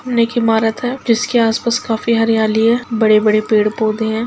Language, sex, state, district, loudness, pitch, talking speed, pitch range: Hindi, female, Chhattisgarh, Kabirdham, -15 LUFS, 225 Hz, 180 wpm, 220-235 Hz